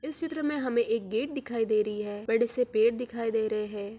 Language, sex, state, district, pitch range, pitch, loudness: Hindi, female, Bihar, Araria, 215-250 Hz, 230 Hz, -29 LUFS